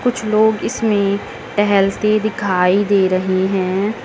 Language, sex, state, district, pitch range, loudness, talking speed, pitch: Hindi, female, Uttar Pradesh, Lucknow, 190-215 Hz, -16 LUFS, 120 wpm, 205 Hz